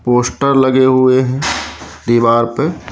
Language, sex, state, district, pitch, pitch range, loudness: Hindi, male, Madhya Pradesh, Katni, 125 Hz, 115-130 Hz, -13 LUFS